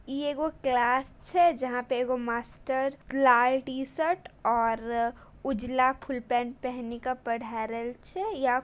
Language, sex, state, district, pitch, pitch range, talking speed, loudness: Hindi, female, Bihar, Bhagalpur, 255 Hz, 240-270 Hz, 130 wpm, -28 LUFS